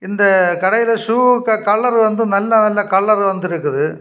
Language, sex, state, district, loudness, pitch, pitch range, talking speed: Tamil, male, Tamil Nadu, Kanyakumari, -14 LUFS, 210 Hz, 195-225 Hz, 150 wpm